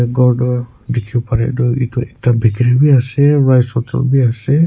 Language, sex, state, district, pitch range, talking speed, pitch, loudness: Nagamese, male, Nagaland, Kohima, 120-130 Hz, 190 wpm, 125 Hz, -14 LUFS